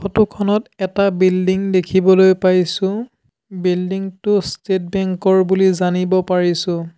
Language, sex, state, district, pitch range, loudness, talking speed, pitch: Assamese, male, Assam, Sonitpur, 180-195 Hz, -16 LUFS, 120 wpm, 190 Hz